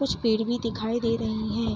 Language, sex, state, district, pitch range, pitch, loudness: Hindi, female, Uttar Pradesh, Hamirpur, 220-235 Hz, 230 Hz, -27 LUFS